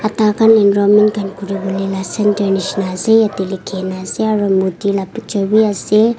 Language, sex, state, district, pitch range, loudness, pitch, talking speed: Nagamese, female, Nagaland, Kohima, 195-215 Hz, -15 LUFS, 200 Hz, 195 wpm